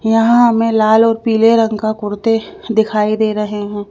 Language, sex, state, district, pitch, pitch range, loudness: Hindi, female, Madhya Pradesh, Bhopal, 220 Hz, 215-225 Hz, -14 LUFS